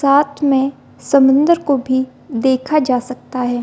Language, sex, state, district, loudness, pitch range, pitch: Hindi, female, Bihar, Gopalganj, -16 LUFS, 255-285 Hz, 270 Hz